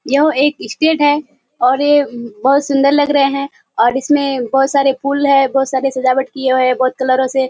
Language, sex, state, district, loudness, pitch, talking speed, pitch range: Hindi, female, Bihar, Kishanganj, -14 LUFS, 270 Hz, 210 wpm, 260-285 Hz